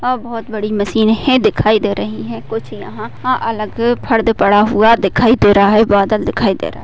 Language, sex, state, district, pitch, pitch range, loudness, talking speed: Hindi, female, Maharashtra, Pune, 220 Hz, 205-230 Hz, -14 LUFS, 210 wpm